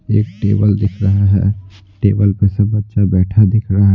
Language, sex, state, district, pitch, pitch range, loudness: Hindi, male, Bihar, Patna, 100 Hz, 100-105 Hz, -14 LUFS